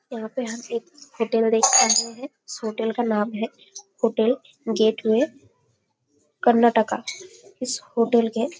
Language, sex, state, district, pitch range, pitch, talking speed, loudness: Hindi, female, Chhattisgarh, Bastar, 225-270 Hz, 235 Hz, 130 wpm, -22 LUFS